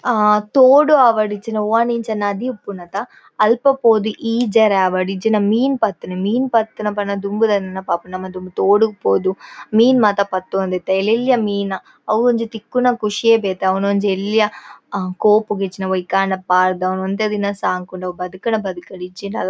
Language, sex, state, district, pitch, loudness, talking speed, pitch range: Tulu, female, Karnataka, Dakshina Kannada, 205 Hz, -17 LUFS, 160 wpm, 190-225 Hz